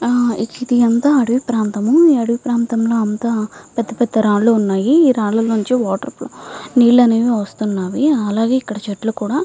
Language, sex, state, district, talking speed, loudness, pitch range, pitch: Telugu, female, Andhra Pradesh, Visakhapatnam, 145 wpm, -16 LUFS, 215-245 Hz, 230 Hz